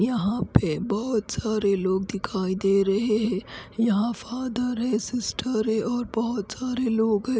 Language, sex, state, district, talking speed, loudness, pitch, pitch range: Hindi, female, Odisha, Khordha, 155 wpm, -25 LUFS, 220 Hz, 200-240 Hz